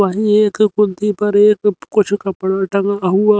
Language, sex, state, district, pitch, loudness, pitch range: Hindi, male, Haryana, Rohtak, 205 Hz, -15 LUFS, 195-210 Hz